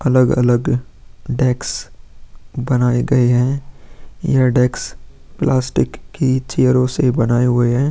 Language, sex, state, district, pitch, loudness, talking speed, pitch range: Hindi, male, Uttar Pradesh, Hamirpur, 125 Hz, -17 LUFS, 105 wpm, 120-130 Hz